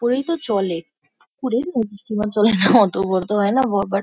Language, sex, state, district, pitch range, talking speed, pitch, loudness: Bengali, female, West Bengal, Kolkata, 200-250 Hz, 225 wpm, 210 Hz, -19 LUFS